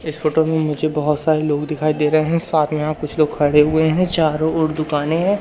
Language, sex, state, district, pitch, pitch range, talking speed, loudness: Hindi, male, Madhya Pradesh, Umaria, 155 Hz, 150-160 Hz, 255 wpm, -18 LUFS